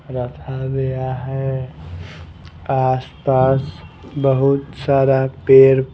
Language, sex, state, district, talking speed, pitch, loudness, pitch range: Hindi, male, Bihar, Patna, 80 wpm, 130 Hz, -17 LUFS, 130-135 Hz